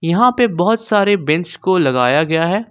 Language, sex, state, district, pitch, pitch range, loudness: Hindi, male, Jharkhand, Ranchi, 185 Hz, 160-215 Hz, -15 LUFS